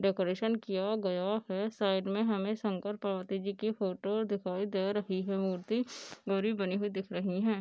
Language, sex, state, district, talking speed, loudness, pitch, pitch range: Hindi, female, Bihar, Darbhanga, 180 wpm, -34 LUFS, 200 Hz, 190-210 Hz